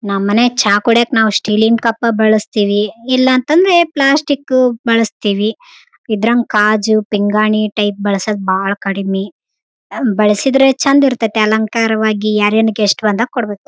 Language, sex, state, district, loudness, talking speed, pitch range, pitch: Kannada, female, Karnataka, Raichur, -13 LUFS, 110 wpm, 210-240 Hz, 220 Hz